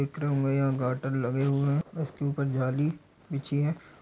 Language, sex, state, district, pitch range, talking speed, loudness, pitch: Hindi, male, Bihar, Darbhanga, 135-145 Hz, 225 wpm, -29 LUFS, 140 Hz